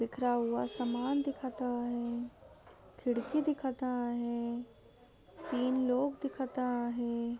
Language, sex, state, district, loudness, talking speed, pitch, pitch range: Marathi, female, Maharashtra, Solapur, -35 LUFS, 95 wpm, 245 Hz, 240-265 Hz